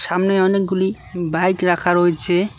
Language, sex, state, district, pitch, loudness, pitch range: Bengali, male, West Bengal, Cooch Behar, 180 Hz, -18 LUFS, 175-190 Hz